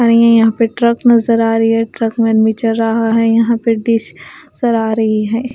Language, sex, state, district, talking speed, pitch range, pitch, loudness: Hindi, female, Bihar, West Champaran, 225 wpm, 225-235 Hz, 230 Hz, -13 LUFS